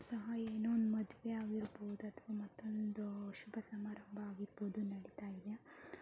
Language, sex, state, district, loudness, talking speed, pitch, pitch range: Kannada, male, Karnataka, Mysore, -44 LUFS, 100 wpm, 210 Hz, 205-225 Hz